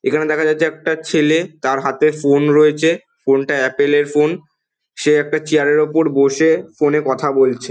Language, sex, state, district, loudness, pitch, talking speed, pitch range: Bengali, male, West Bengal, Dakshin Dinajpur, -15 LUFS, 150 Hz, 185 wpm, 140-155 Hz